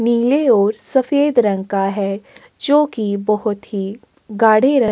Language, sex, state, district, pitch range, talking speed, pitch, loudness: Hindi, female, Uttarakhand, Tehri Garhwal, 205-265 Hz, 145 wpm, 220 Hz, -16 LUFS